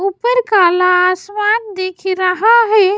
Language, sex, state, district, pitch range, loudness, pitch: Hindi, female, Bihar, West Champaran, 365-430 Hz, -13 LUFS, 390 Hz